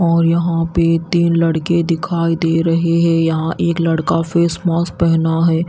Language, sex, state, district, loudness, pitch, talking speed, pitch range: Hindi, female, Chhattisgarh, Raipur, -15 LUFS, 165 Hz, 170 wpm, 165-170 Hz